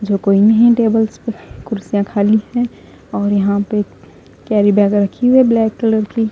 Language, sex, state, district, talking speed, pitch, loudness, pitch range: Hindi, female, Punjab, Fazilka, 170 wpm, 215 Hz, -14 LUFS, 205-225 Hz